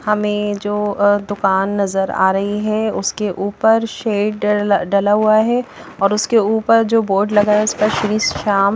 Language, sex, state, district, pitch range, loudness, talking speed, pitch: Hindi, female, Haryana, Charkhi Dadri, 200-215 Hz, -16 LUFS, 180 wpm, 210 Hz